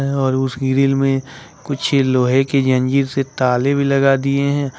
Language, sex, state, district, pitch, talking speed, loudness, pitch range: Hindi, male, Jharkhand, Ranchi, 135 Hz, 175 wpm, -17 LUFS, 130-140 Hz